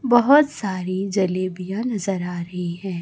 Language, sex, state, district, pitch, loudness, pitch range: Hindi, male, Chhattisgarh, Raipur, 190 Hz, -22 LUFS, 180-215 Hz